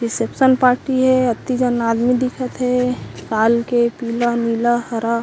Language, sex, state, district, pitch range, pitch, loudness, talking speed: Chhattisgarhi, female, Chhattisgarh, Korba, 235-250 Hz, 240 Hz, -17 LUFS, 150 wpm